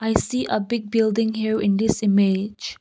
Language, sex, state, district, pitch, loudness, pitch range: English, female, Nagaland, Kohima, 220 Hz, -21 LUFS, 205-225 Hz